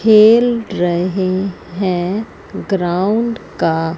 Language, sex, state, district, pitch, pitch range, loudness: Hindi, female, Chandigarh, Chandigarh, 190 Hz, 175-215 Hz, -16 LUFS